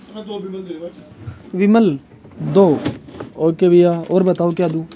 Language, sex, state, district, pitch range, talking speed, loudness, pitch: Hindi, male, Rajasthan, Jaipur, 165-190 Hz, 95 wpm, -15 LUFS, 175 Hz